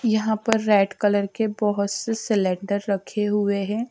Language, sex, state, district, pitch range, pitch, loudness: Hindi, female, Madhya Pradesh, Dhar, 200-220 Hz, 210 Hz, -23 LUFS